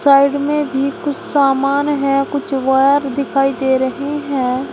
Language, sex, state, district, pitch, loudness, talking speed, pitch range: Hindi, female, Uttar Pradesh, Shamli, 275 Hz, -16 LUFS, 150 wpm, 270-285 Hz